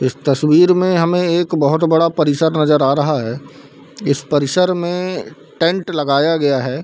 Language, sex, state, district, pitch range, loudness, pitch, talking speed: Hindi, male, Bihar, Darbhanga, 140-170 Hz, -15 LUFS, 155 Hz, 165 wpm